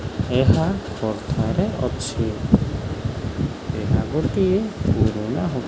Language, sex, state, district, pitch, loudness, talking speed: Odia, male, Odisha, Khordha, 110 Hz, -22 LUFS, 85 wpm